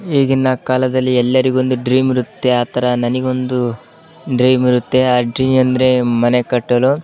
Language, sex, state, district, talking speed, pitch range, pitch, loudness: Kannada, male, Karnataka, Bellary, 135 wpm, 125-130 Hz, 130 Hz, -15 LUFS